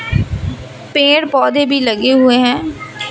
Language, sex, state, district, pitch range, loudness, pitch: Hindi, female, Maharashtra, Mumbai Suburban, 250-290 Hz, -13 LUFS, 275 Hz